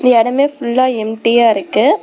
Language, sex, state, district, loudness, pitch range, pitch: Tamil, female, Tamil Nadu, Namakkal, -13 LUFS, 230-255 Hz, 235 Hz